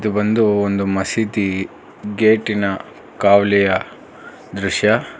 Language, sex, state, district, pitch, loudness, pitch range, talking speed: Kannada, male, Karnataka, Bangalore, 100 Hz, -17 LUFS, 100-105 Hz, 70 wpm